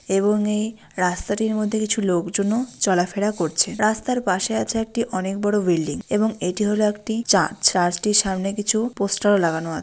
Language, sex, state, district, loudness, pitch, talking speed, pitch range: Bengali, female, West Bengal, Dakshin Dinajpur, -21 LUFS, 205 Hz, 185 wpm, 185-215 Hz